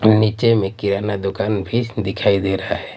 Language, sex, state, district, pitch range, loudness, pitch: Hindi, male, Maharashtra, Mumbai Suburban, 100-110 Hz, -19 LUFS, 105 Hz